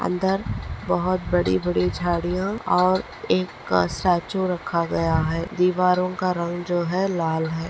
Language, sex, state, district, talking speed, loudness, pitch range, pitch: Hindi, female, Maharashtra, Nagpur, 140 wpm, -23 LUFS, 125-185 Hz, 170 Hz